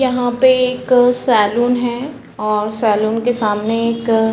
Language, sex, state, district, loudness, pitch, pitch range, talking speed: Hindi, female, Chhattisgarh, Balrampur, -15 LUFS, 240 Hz, 215-250 Hz, 150 wpm